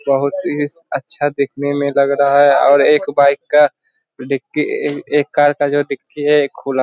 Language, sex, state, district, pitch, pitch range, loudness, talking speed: Hindi, male, Bihar, Jamui, 145 Hz, 140-145 Hz, -15 LUFS, 185 wpm